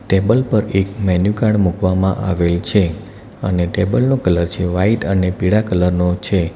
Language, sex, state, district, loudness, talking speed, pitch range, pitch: Gujarati, male, Gujarat, Valsad, -16 LUFS, 175 wpm, 90-105 Hz, 95 Hz